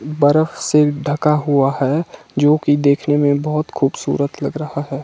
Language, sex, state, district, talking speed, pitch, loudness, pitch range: Hindi, male, Himachal Pradesh, Shimla, 165 wpm, 145 Hz, -17 LUFS, 140-150 Hz